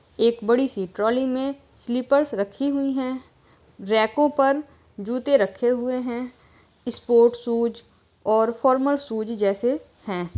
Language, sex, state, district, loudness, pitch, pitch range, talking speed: Hindi, female, Uttar Pradesh, Jyotiba Phule Nagar, -23 LUFS, 245 Hz, 220-270 Hz, 125 wpm